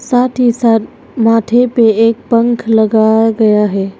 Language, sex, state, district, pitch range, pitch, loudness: Hindi, female, Arunachal Pradesh, Longding, 220-240 Hz, 225 Hz, -11 LUFS